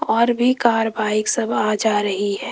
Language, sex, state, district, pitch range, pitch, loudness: Hindi, female, Rajasthan, Jaipur, 210-230 Hz, 215 Hz, -19 LUFS